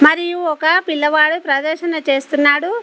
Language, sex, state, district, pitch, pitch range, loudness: Telugu, female, Telangana, Komaram Bheem, 315 Hz, 295-335 Hz, -15 LUFS